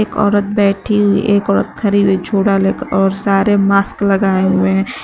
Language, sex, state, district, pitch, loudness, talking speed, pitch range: Hindi, female, Uttar Pradesh, Shamli, 200 Hz, -14 LUFS, 200 wpm, 195-205 Hz